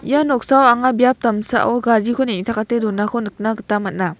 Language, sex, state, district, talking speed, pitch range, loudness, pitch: Garo, female, Meghalaya, West Garo Hills, 155 wpm, 210-255 Hz, -17 LUFS, 230 Hz